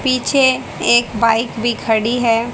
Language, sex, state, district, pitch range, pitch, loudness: Hindi, female, Haryana, Rohtak, 230-250 Hz, 235 Hz, -15 LUFS